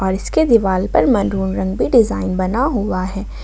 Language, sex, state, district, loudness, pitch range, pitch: Hindi, female, Jharkhand, Ranchi, -17 LUFS, 190-230 Hz, 195 Hz